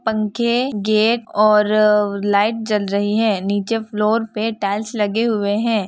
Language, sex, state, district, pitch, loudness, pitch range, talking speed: Hindi, female, Jharkhand, Jamtara, 215 Hz, -18 LUFS, 205-225 Hz, 155 wpm